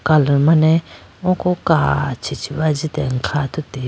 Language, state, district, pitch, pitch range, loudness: Idu Mishmi, Arunachal Pradesh, Lower Dibang Valley, 150 Hz, 135-160 Hz, -18 LUFS